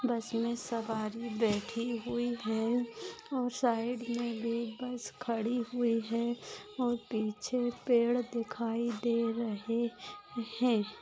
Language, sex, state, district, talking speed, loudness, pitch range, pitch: Hindi, female, Maharashtra, Nagpur, 110 wpm, -34 LUFS, 230-245 Hz, 235 Hz